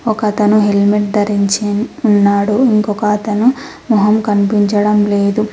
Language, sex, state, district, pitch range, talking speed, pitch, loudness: Telugu, female, Telangana, Mahabubabad, 205-215 Hz, 85 wpm, 210 Hz, -13 LUFS